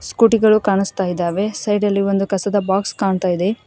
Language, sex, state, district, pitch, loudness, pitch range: Kannada, female, Karnataka, Koppal, 200 Hz, -17 LUFS, 190-210 Hz